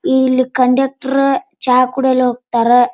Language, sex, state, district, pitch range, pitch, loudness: Kannada, male, Karnataka, Dharwad, 250-270 Hz, 260 Hz, -14 LUFS